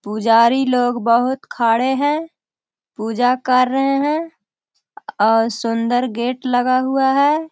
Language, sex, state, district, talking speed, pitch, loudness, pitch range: Hindi, female, Bihar, Jahanabad, 120 wpm, 255 Hz, -17 LUFS, 235-270 Hz